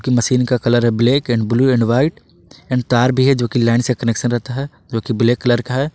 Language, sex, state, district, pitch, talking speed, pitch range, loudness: Hindi, male, Jharkhand, Ranchi, 125 Hz, 250 wpm, 120-130 Hz, -16 LUFS